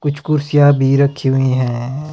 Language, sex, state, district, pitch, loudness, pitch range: Hindi, male, Himachal Pradesh, Shimla, 140 Hz, -14 LUFS, 135-145 Hz